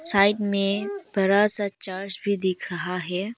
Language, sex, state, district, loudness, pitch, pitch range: Hindi, female, Arunachal Pradesh, Lower Dibang Valley, -20 LUFS, 200 Hz, 190-205 Hz